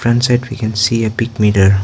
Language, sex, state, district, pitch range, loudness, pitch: English, male, Arunachal Pradesh, Lower Dibang Valley, 105-120 Hz, -14 LUFS, 115 Hz